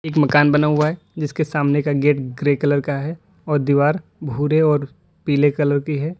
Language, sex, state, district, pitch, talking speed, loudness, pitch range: Hindi, male, Uttar Pradesh, Lalitpur, 145 Hz, 205 wpm, -19 LUFS, 145-155 Hz